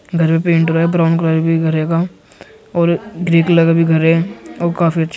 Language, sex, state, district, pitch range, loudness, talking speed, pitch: Hindi, male, Uttar Pradesh, Muzaffarnagar, 165-170 Hz, -14 LUFS, 195 wpm, 165 Hz